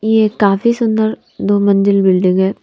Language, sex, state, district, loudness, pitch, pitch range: Hindi, female, Punjab, Kapurthala, -13 LUFS, 205 Hz, 195-220 Hz